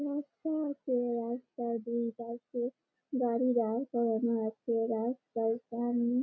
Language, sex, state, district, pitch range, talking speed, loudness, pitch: Bengali, female, West Bengal, Malda, 235-255 Hz, 105 wpm, -33 LUFS, 240 Hz